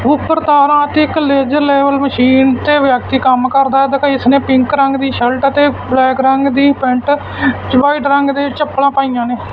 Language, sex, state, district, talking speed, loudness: Punjabi, male, Punjab, Fazilka, 185 wpm, -12 LUFS